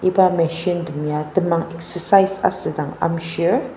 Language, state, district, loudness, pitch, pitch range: Ao, Nagaland, Dimapur, -19 LUFS, 170 Hz, 165-185 Hz